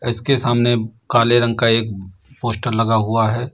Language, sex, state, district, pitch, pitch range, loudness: Hindi, male, Uttar Pradesh, Lalitpur, 115 Hz, 110-120 Hz, -17 LUFS